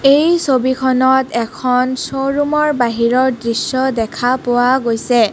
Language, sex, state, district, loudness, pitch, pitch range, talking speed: Assamese, female, Assam, Kamrup Metropolitan, -15 LUFS, 255 Hz, 240-270 Hz, 125 wpm